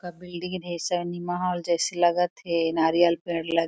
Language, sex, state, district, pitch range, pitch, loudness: Chhattisgarhi, female, Chhattisgarh, Korba, 170-175 Hz, 175 Hz, -25 LUFS